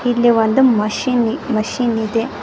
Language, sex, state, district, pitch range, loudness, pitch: Kannada, female, Karnataka, Koppal, 220-245 Hz, -16 LUFS, 230 Hz